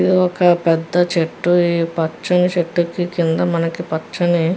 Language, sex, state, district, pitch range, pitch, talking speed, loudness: Telugu, female, Andhra Pradesh, Guntur, 165-175 Hz, 175 Hz, 160 wpm, -17 LUFS